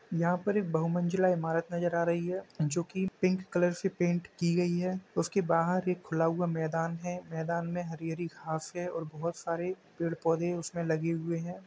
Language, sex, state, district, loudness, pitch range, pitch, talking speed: Hindi, male, Uttar Pradesh, Jalaun, -32 LUFS, 165-180 Hz, 170 Hz, 210 wpm